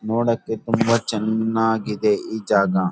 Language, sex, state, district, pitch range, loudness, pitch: Kannada, male, Karnataka, Bellary, 105-115 Hz, -21 LUFS, 110 Hz